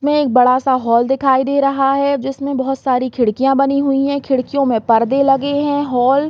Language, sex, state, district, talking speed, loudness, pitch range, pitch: Hindi, female, Chhattisgarh, Raigarh, 210 wpm, -15 LUFS, 255-280 Hz, 270 Hz